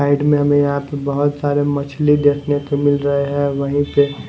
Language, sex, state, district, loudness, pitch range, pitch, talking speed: Hindi, male, Chandigarh, Chandigarh, -17 LUFS, 140-145 Hz, 145 Hz, 210 wpm